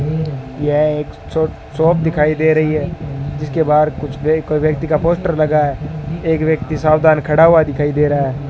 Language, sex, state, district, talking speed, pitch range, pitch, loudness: Hindi, male, Rajasthan, Bikaner, 175 wpm, 150-160 Hz, 155 Hz, -16 LUFS